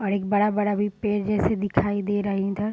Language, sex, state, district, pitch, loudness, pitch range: Hindi, female, Bihar, Purnia, 205 Hz, -24 LUFS, 200-210 Hz